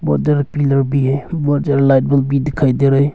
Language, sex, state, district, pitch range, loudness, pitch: Hindi, male, Arunachal Pradesh, Longding, 135-145 Hz, -15 LUFS, 140 Hz